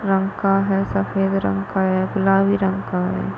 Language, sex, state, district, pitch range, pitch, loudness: Hindi, female, Chhattisgarh, Korba, 125-195 Hz, 190 Hz, -20 LUFS